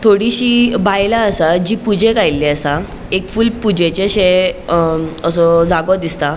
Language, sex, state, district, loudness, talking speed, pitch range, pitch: Konkani, female, Goa, North and South Goa, -13 LUFS, 140 wpm, 165-215 Hz, 185 Hz